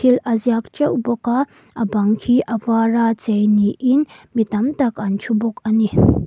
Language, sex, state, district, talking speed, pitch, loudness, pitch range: Mizo, female, Mizoram, Aizawl, 200 wpm, 230 Hz, -18 LUFS, 215-245 Hz